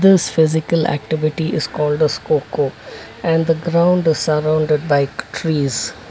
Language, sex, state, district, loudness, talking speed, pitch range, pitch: English, male, Karnataka, Bangalore, -17 LUFS, 150 wpm, 150-165 Hz, 155 Hz